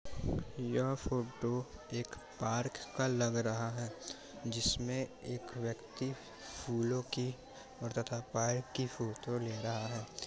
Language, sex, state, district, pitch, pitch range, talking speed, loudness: Hindi, male, Bihar, Muzaffarpur, 120 Hz, 115-125 Hz, 135 wpm, -38 LUFS